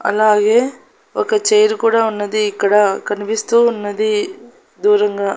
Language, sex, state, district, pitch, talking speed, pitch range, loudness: Telugu, female, Andhra Pradesh, Annamaya, 215 Hz, 100 wpm, 210-260 Hz, -15 LUFS